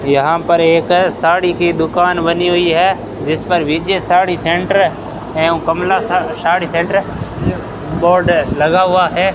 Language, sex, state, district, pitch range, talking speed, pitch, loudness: Hindi, male, Rajasthan, Bikaner, 165-180 Hz, 145 wpm, 175 Hz, -14 LUFS